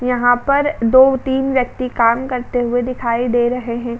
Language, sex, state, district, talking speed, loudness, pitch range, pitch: Hindi, female, Uttar Pradesh, Budaun, 180 wpm, -16 LUFS, 240-260 Hz, 245 Hz